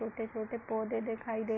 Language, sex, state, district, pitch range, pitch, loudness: Hindi, female, Uttar Pradesh, Hamirpur, 220-230 Hz, 225 Hz, -37 LUFS